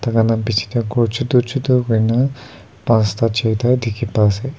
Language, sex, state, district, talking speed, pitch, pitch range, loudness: Nagamese, male, Nagaland, Kohima, 185 wpm, 115 Hz, 110-125 Hz, -17 LUFS